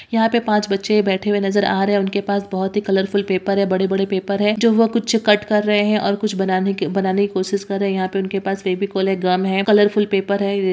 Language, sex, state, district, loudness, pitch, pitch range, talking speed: Hindi, female, Bihar, Purnia, -18 LUFS, 200 Hz, 195-210 Hz, 265 wpm